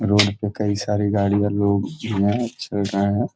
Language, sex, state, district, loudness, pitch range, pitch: Hindi, male, Bihar, Gopalganj, -21 LUFS, 100-105 Hz, 100 Hz